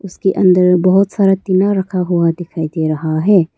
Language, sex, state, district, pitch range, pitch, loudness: Hindi, female, Arunachal Pradesh, Papum Pare, 170-195 Hz, 180 Hz, -14 LUFS